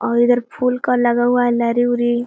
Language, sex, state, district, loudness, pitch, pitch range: Hindi, female, Bihar, Gaya, -17 LUFS, 240 Hz, 240-245 Hz